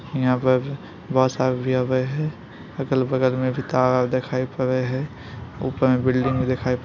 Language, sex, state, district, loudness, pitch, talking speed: Maithili, male, Bihar, Bhagalpur, -22 LUFS, 130 Hz, 125 wpm